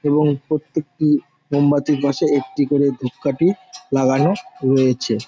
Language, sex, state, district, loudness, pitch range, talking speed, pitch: Bengali, male, West Bengal, Jalpaiguri, -19 LUFS, 135-155 Hz, 125 wpm, 145 Hz